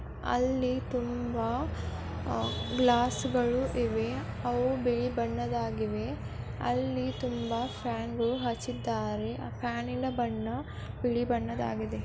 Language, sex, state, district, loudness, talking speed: Kannada, female, Karnataka, Belgaum, -32 LUFS, 95 wpm